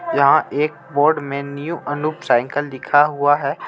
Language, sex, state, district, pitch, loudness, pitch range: Hindi, male, Jharkhand, Ranchi, 145 Hz, -18 LUFS, 140-155 Hz